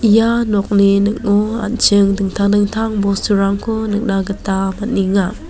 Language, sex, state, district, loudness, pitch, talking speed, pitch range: Garo, female, Meghalaya, West Garo Hills, -15 LUFS, 205 Hz, 110 wpm, 195-220 Hz